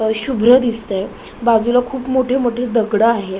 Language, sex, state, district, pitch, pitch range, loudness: Marathi, female, Maharashtra, Solapur, 235 Hz, 220-250 Hz, -16 LUFS